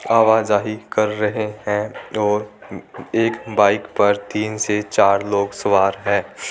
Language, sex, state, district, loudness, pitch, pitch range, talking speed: Hindi, male, Rajasthan, Churu, -19 LUFS, 105 Hz, 100-110 Hz, 130 wpm